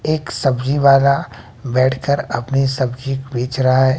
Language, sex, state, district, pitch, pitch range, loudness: Hindi, male, Bihar, West Champaran, 130 Hz, 130-140 Hz, -17 LUFS